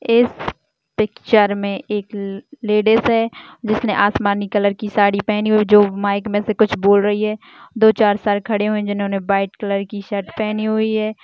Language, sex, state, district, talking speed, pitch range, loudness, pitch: Hindi, female, Chhattisgarh, Jashpur, 180 wpm, 200-215 Hz, -18 LUFS, 210 Hz